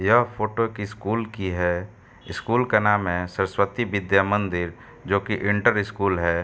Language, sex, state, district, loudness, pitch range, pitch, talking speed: Hindi, male, Uttar Pradesh, Hamirpur, -23 LUFS, 95-110 Hz, 100 Hz, 170 wpm